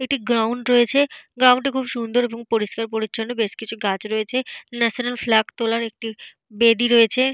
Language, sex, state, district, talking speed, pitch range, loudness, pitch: Bengali, female, Jharkhand, Jamtara, 165 wpm, 225-245 Hz, -20 LUFS, 230 Hz